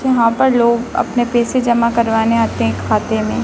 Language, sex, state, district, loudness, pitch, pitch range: Hindi, male, Madhya Pradesh, Dhar, -15 LUFS, 235 Hz, 225-240 Hz